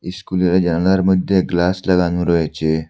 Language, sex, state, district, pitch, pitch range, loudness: Bengali, male, Assam, Hailakandi, 90 Hz, 85-95 Hz, -17 LUFS